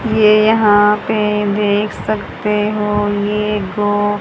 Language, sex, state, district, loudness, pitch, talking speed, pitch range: Hindi, female, Haryana, Charkhi Dadri, -15 LUFS, 210 Hz, 115 wpm, 205-210 Hz